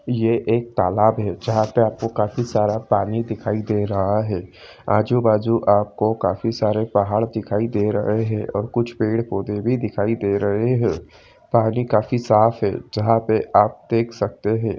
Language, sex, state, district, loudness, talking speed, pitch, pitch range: Hindi, female, Jharkhand, Jamtara, -20 LUFS, 170 wpm, 110 Hz, 105-115 Hz